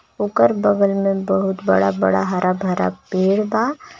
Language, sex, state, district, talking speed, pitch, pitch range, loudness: Bhojpuri, male, Jharkhand, Palamu, 135 wpm, 195 Hz, 180-205 Hz, -18 LUFS